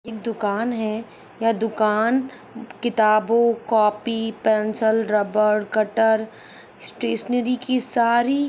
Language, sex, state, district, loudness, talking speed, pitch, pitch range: Hindi, female, Maharashtra, Aurangabad, -21 LUFS, 90 wpm, 225 Hz, 215-235 Hz